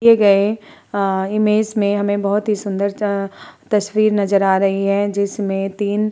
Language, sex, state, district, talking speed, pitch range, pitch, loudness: Hindi, female, Uttar Pradesh, Muzaffarnagar, 175 wpm, 195-210 Hz, 200 Hz, -18 LUFS